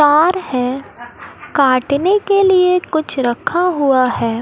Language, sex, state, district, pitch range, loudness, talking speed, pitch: Hindi, female, Maharashtra, Mumbai Suburban, 255-360 Hz, -15 LUFS, 135 wpm, 295 Hz